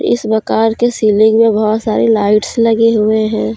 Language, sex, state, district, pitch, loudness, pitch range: Hindi, female, Jharkhand, Deoghar, 220 Hz, -12 LUFS, 215-225 Hz